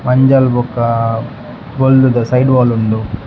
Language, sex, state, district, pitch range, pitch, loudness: Tulu, male, Karnataka, Dakshina Kannada, 115-130 Hz, 120 Hz, -12 LUFS